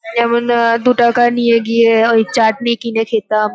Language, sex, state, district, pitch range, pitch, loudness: Bengali, female, West Bengal, North 24 Parganas, 225-235 Hz, 230 Hz, -13 LUFS